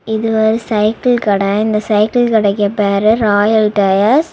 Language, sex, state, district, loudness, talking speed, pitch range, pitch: Tamil, female, Tamil Nadu, Kanyakumari, -13 LUFS, 150 wpm, 205-220 Hz, 215 Hz